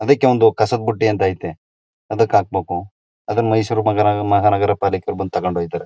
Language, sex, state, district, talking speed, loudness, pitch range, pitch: Kannada, male, Karnataka, Mysore, 90 wpm, -17 LUFS, 95-110 Hz, 105 Hz